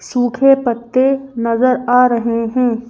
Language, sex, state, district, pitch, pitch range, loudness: Hindi, female, Madhya Pradesh, Bhopal, 245 Hz, 235-255 Hz, -14 LUFS